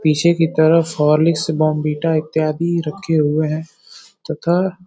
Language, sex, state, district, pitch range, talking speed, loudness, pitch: Hindi, male, Uttar Pradesh, Deoria, 155-165 Hz, 135 wpm, -17 LUFS, 160 Hz